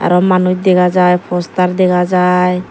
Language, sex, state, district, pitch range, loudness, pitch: Chakma, female, Tripura, Dhalai, 180-185 Hz, -12 LUFS, 180 Hz